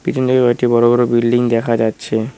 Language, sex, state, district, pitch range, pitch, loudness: Bengali, male, West Bengal, Cooch Behar, 115-120 Hz, 120 Hz, -14 LUFS